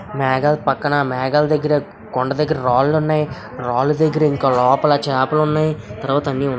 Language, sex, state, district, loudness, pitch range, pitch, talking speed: Telugu, male, Andhra Pradesh, Visakhapatnam, -18 LUFS, 130-150 Hz, 145 Hz, 180 wpm